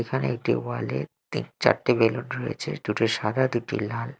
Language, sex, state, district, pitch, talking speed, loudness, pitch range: Bengali, male, Odisha, Malkangiri, 110 Hz, 170 wpm, -26 LUFS, 70-120 Hz